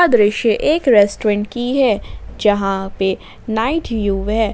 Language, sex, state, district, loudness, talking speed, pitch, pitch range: Hindi, female, Jharkhand, Ranchi, -17 LUFS, 145 wpm, 220 Hz, 205-245 Hz